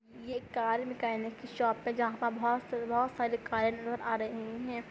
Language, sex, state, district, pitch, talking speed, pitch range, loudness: Hindi, female, Uttar Pradesh, Budaun, 235 Hz, 185 wpm, 225-240 Hz, -34 LUFS